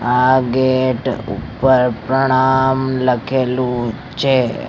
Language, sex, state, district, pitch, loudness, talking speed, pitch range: Gujarati, male, Gujarat, Gandhinagar, 130 Hz, -16 LUFS, 75 wpm, 120-130 Hz